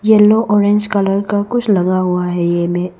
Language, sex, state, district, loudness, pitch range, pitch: Hindi, female, Arunachal Pradesh, Lower Dibang Valley, -14 LUFS, 180-210 Hz, 200 Hz